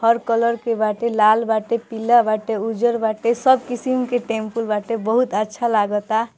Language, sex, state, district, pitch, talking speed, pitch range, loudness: Bhojpuri, female, Bihar, East Champaran, 230 Hz, 170 wpm, 220-235 Hz, -19 LUFS